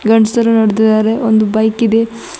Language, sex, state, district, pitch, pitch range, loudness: Kannada, female, Karnataka, Bidar, 220 Hz, 220-230 Hz, -12 LUFS